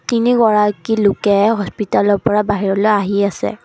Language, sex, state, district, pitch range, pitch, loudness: Assamese, female, Assam, Kamrup Metropolitan, 200-215 Hz, 205 Hz, -15 LUFS